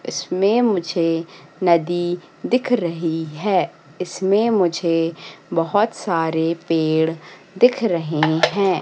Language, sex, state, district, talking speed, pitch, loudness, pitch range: Hindi, female, Madhya Pradesh, Katni, 95 wpm, 175 Hz, -20 LUFS, 165-195 Hz